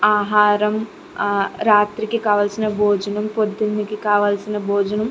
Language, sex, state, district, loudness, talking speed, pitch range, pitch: Telugu, female, Andhra Pradesh, Chittoor, -19 LUFS, 105 wpm, 205-215 Hz, 210 Hz